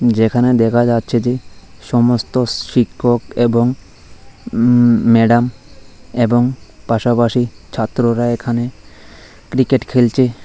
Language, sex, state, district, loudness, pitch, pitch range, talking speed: Bengali, male, Tripura, West Tripura, -15 LUFS, 120 Hz, 115-125 Hz, 85 wpm